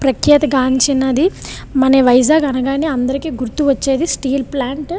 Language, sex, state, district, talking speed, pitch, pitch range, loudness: Telugu, female, Andhra Pradesh, Visakhapatnam, 130 wpm, 270 Hz, 265-295 Hz, -14 LUFS